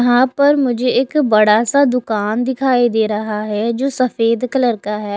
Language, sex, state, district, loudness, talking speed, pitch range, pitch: Hindi, female, Odisha, Khordha, -15 LUFS, 185 wpm, 215-255 Hz, 245 Hz